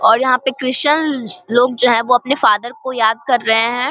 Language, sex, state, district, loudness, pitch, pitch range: Hindi, male, Bihar, Saharsa, -15 LUFS, 245 Hz, 230-260 Hz